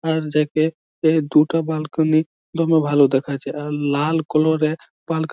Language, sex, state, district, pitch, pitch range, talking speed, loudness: Bengali, male, West Bengal, Malda, 155 Hz, 150-160 Hz, 125 wpm, -19 LUFS